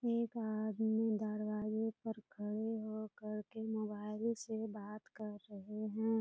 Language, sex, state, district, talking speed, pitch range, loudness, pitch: Hindi, female, Bihar, Purnia, 135 wpm, 210-220 Hz, -41 LUFS, 215 Hz